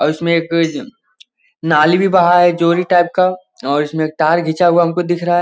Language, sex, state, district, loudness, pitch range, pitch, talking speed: Hindi, male, Bihar, Jamui, -14 LUFS, 160-175 Hz, 175 Hz, 220 wpm